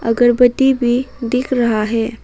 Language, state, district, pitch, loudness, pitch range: Hindi, Arunachal Pradesh, Papum Pare, 240 Hz, -15 LUFS, 230-250 Hz